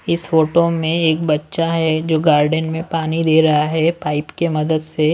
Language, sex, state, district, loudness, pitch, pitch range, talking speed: Hindi, male, Delhi, New Delhi, -17 LUFS, 160 Hz, 155-165 Hz, 200 wpm